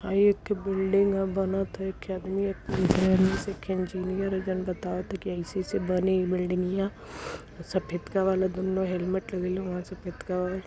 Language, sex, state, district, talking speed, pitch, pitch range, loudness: Hindi, female, Uttar Pradesh, Varanasi, 175 wpm, 190 Hz, 185-195 Hz, -28 LUFS